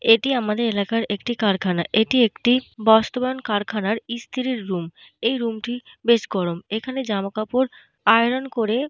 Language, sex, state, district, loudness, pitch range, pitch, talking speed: Bengali, female, Jharkhand, Jamtara, -22 LUFS, 210-245 Hz, 225 Hz, 150 wpm